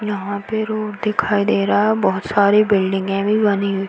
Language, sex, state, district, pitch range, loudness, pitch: Hindi, female, Uttar Pradesh, Varanasi, 195-215 Hz, -18 LUFS, 205 Hz